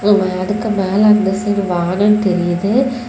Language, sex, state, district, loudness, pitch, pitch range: Tamil, female, Tamil Nadu, Kanyakumari, -15 LUFS, 200 Hz, 190-210 Hz